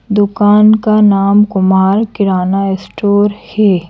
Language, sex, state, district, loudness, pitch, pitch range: Hindi, female, Madhya Pradesh, Bhopal, -11 LUFS, 205 Hz, 195-210 Hz